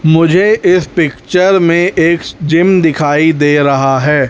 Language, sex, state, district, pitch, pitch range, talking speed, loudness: Hindi, male, Chhattisgarh, Raipur, 165 Hz, 145-180 Hz, 140 wpm, -10 LUFS